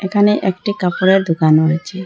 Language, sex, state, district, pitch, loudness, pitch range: Bengali, female, Assam, Hailakandi, 185 Hz, -15 LUFS, 165-200 Hz